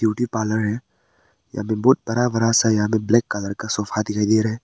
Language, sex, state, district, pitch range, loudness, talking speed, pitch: Hindi, male, Arunachal Pradesh, Papum Pare, 105-115 Hz, -20 LUFS, 245 wpm, 110 Hz